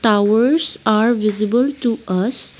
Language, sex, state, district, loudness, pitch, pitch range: English, female, Assam, Kamrup Metropolitan, -16 LUFS, 225 Hz, 210-250 Hz